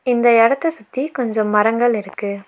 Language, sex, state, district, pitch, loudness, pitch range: Tamil, female, Tamil Nadu, Nilgiris, 230 Hz, -17 LUFS, 210-250 Hz